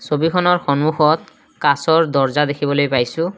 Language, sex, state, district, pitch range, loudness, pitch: Assamese, male, Assam, Kamrup Metropolitan, 145-165 Hz, -17 LUFS, 150 Hz